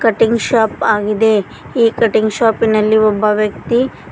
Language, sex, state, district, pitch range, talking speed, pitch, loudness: Kannada, female, Karnataka, Koppal, 215-230 Hz, 115 wpm, 220 Hz, -14 LUFS